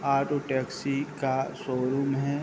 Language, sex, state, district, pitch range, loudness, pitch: Hindi, male, Bihar, Saharsa, 130-140 Hz, -29 LUFS, 140 Hz